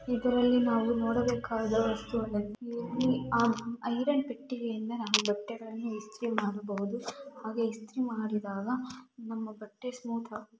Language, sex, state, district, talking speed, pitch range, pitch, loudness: Kannada, female, Karnataka, Mysore, 110 wpm, 220-245 Hz, 230 Hz, -32 LUFS